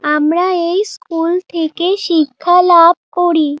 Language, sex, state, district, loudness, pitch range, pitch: Bengali, female, West Bengal, Dakshin Dinajpur, -13 LUFS, 320-360 Hz, 340 Hz